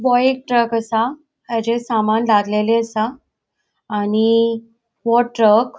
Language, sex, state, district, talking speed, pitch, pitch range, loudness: Konkani, female, Goa, North and South Goa, 125 wpm, 230 Hz, 220-240 Hz, -18 LUFS